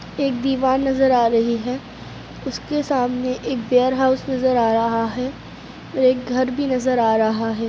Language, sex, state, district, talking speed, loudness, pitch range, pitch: Hindi, female, Bihar, Sitamarhi, 170 wpm, -20 LUFS, 235-265 Hz, 255 Hz